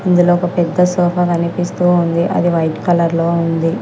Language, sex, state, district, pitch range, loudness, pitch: Telugu, female, Telangana, Hyderabad, 170-180 Hz, -15 LUFS, 175 Hz